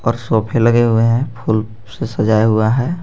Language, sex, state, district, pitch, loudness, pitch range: Hindi, male, Jharkhand, Garhwa, 115 Hz, -15 LUFS, 110-120 Hz